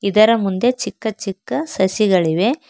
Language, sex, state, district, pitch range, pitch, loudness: Kannada, female, Karnataka, Bangalore, 190-230 Hz, 210 Hz, -18 LUFS